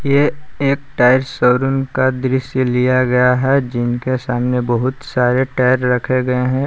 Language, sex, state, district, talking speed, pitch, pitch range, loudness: Hindi, male, Jharkhand, Palamu, 155 wpm, 130 Hz, 125-135 Hz, -16 LUFS